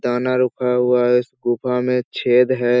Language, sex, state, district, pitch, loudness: Hindi, male, Bihar, Jahanabad, 125 Hz, -18 LUFS